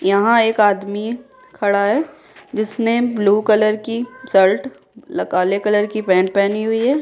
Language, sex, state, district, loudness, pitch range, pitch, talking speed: Hindi, female, Bihar, Kishanganj, -17 LUFS, 200-235 Hz, 215 Hz, 145 wpm